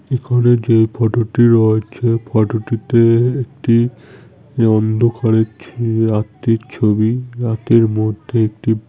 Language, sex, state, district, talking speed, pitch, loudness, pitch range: Bengali, male, West Bengal, North 24 Parganas, 100 wpm, 115 Hz, -15 LUFS, 110-120 Hz